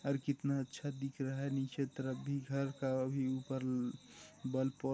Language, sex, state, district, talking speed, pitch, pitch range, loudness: Hindi, male, Chhattisgarh, Sarguja, 195 wpm, 135 Hz, 130-140 Hz, -39 LUFS